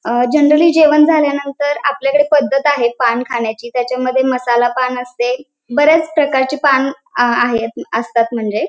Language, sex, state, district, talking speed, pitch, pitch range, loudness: Marathi, female, Maharashtra, Pune, 145 wpm, 260 Hz, 240-290 Hz, -14 LUFS